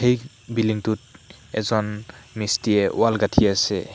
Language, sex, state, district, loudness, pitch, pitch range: Assamese, male, Assam, Hailakandi, -22 LUFS, 110 Hz, 105-115 Hz